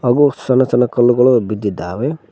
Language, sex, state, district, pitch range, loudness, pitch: Kannada, male, Karnataka, Koppal, 120-130 Hz, -15 LUFS, 125 Hz